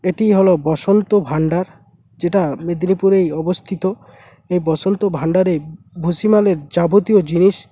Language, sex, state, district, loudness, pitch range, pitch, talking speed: Bengali, male, West Bengal, Paschim Medinipur, -16 LUFS, 165-195 Hz, 180 Hz, 110 wpm